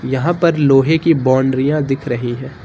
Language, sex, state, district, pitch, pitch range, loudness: Hindi, male, Uttar Pradesh, Lucknow, 135 Hz, 130-155 Hz, -15 LUFS